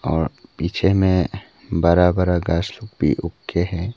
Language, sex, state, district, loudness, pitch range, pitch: Hindi, male, Arunachal Pradesh, Papum Pare, -20 LUFS, 85-95 Hz, 90 Hz